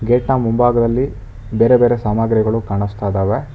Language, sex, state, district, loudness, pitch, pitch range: Kannada, male, Karnataka, Bangalore, -16 LUFS, 115 Hz, 105-120 Hz